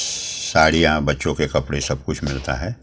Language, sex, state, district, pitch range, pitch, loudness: Hindi, male, Delhi, New Delhi, 70-80 Hz, 75 Hz, -20 LUFS